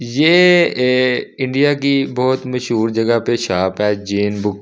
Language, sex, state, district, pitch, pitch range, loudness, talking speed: Hindi, male, Delhi, New Delhi, 125 Hz, 105-135 Hz, -15 LUFS, 170 wpm